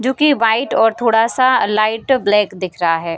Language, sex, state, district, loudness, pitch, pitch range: Hindi, female, Bihar, East Champaran, -15 LUFS, 225 Hz, 205-255 Hz